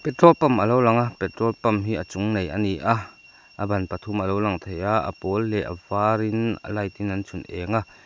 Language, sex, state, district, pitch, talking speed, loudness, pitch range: Mizo, male, Mizoram, Aizawl, 105 Hz, 260 wpm, -23 LUFS, 95-115 Hz